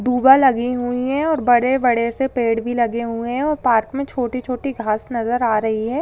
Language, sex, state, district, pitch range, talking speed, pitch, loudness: Hindi, female, Maharashtra, Sindhudurg, 235-265 Hz, 210 wpm, 245 Hz, -18 LUFS